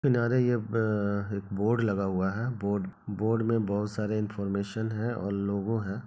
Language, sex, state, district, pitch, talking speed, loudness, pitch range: Hindi, male, Bihar, Begusarai, 105 Hz, 180 wpm, -29 LUFS, 100-115 Hz